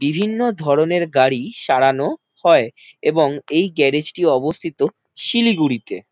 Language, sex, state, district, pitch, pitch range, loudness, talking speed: Bengali, male, West Bengal, Jalpaiguri, 160 Hz, 140-235 Hz, -18 LUFS, 110 wpm